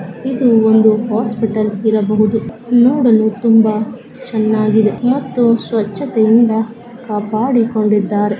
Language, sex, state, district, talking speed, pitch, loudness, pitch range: Kannada, female, Karnataka, Bijapur, 70 wpm, 220 Hz, -14 LUFS, 215-235 Hz